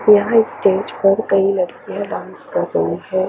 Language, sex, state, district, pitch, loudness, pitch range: Hindi, female, Chandigarh, Chandigarh, 195 Hz, -17 LUFS, 190-210 Hz